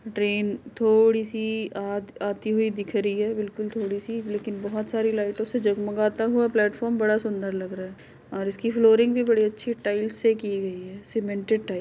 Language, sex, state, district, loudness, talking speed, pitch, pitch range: Hindi, female, Uttar Pradesh, Hamirpur, -25 LUFS, 200 wpm, 215 Hz, 205-225 Hz